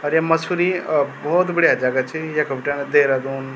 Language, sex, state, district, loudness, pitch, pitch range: Garhwali, male, Uttarakhand, Tehri Garhwal, -19 LUFS, 145 Hz, 135-165 Hz